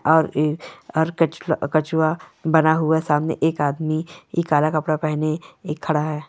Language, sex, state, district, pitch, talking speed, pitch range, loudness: Hindi, female, Bihar, Gopalganj, 155 Hz, 155 wpm, 150-160 Hz, -21 LUFS